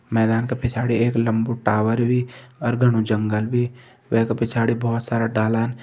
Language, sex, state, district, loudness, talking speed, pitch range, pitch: Hindi, male, Uttarakhand, Tehri Garhwal, -21 LUFS, 175 wpm, 115-120 Hz, 115 Hz